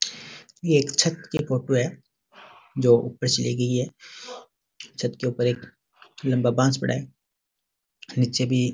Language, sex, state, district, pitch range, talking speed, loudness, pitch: Marwari, male, Rajasthan, Nagaur, 120-135 Hz, 160 wpm, -24 LUFS, 125 Hz